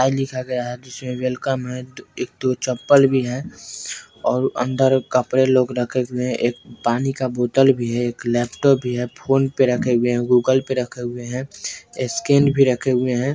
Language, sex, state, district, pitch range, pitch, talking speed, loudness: Bajjika, male, Bihar, Vaishali, 125-130 Hz, 125 Hz, 170 wpm, -20 LUFS